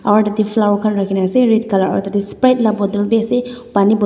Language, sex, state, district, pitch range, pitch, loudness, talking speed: Nagamese, female, Nagaland, Dimapur, 200-225 Hz, 210 Hz, -15 LUFS, 310 wpm